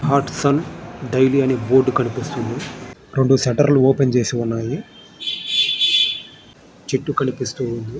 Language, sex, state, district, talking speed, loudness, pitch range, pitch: Telugu, male, Andhra Pradesh, Guntur, 75 wpm, -18 LUFS, 125-140 Hz, 130 Hz